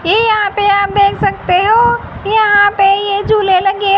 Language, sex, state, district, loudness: Hindi, female, Haryana, Jhajjar, -11 LUFS